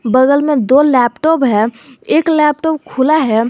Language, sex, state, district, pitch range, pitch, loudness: Hindi, male, Jharkhand, Garhwa, 245-300 Hz, 275 Hz, -12 LUFS